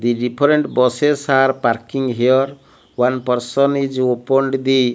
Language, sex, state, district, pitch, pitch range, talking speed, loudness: English, male, Odisha, Malkangiri, 130 Hz, 125-135 Hz, 145 wpm, -17 LUFS